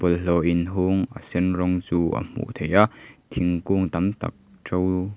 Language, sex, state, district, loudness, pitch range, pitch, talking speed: Mizo, male, Mizoram, Aizawl, -24 LUFS, 85-95 Hz, 90 Hz, 150 wpm